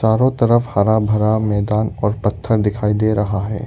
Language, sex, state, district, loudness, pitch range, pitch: Hindi, male, Arunachal Pradesh, Lower Dibang Valley, -17 LUFS, 105-110 Hz, 105 Hz